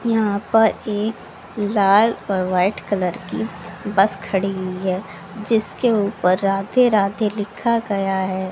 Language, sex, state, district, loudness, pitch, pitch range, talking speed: Hindi, female, Haryana, Charkhi Dadri, -20 LUFS, 200 Hz, 190-220 Hz, 135 wpm